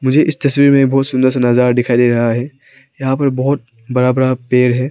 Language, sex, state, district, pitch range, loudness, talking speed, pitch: Hindi, male, Arunachal Pradesh, Papum Pare, 125-135 Hz, -14 LUFS, 230 wpm, 130 Hz